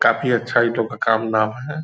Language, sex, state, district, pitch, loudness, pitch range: Hindi, male, Bihar, Purnia, 120 Hz, -19 LUFS, 110-130 Hz